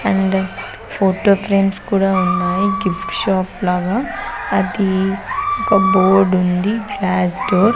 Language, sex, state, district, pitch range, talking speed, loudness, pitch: Telugu, female, Andhra Pradesh, Sri Satya Sai, 190-200 Hz, 100 wpm, -16 LUFS, 195 Hz